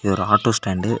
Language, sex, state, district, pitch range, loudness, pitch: Tamil, male, Tamil Nadu, Nilgiris, 95-115 Hz, -19 LUFS, 105 Hz